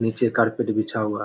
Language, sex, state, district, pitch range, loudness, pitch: Hindi, male, Bihar, Samastipur, 110-115 Hz, -23 LUFS, 110 Hz